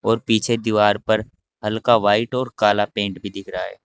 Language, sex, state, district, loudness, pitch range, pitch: Hindi, male, Uttar Pradesh, Saharanpur, -20 LUFS, 105-115 Hz, 110 Hz